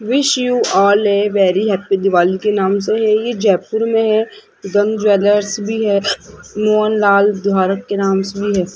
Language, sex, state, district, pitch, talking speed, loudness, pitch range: Hindi, female, Rajasthan, Jaipur, 205 Hz, 185 wpm, -15 LUFS, 195-215 Hz